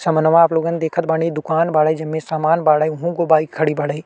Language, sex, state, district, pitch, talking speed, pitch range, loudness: Bhojpuri, male, Uttar Pradesh, Deoria, 160 Hz, 235 wpm, 155-165 Hz, -17 LUFS